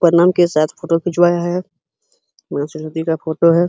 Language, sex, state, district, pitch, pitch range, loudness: Hindi, male, Uttar Pradesh, Hamirpur, 170 Hz, 160-175 Hz, -17 LUFS